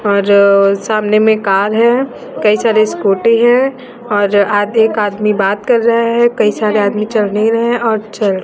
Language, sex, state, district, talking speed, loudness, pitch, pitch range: Hindi, female, Chhattisgarh, Raipur, 190 wpm, -12 LUFS, 215 Hz, 205-230 Hz